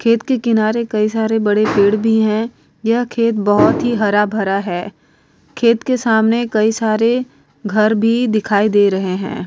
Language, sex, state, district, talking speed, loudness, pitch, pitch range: Hindi, female, Uttar Pradesh, Varanasi, 75 wpm, -15 LUFS, 220 Hz, 210-230 Hz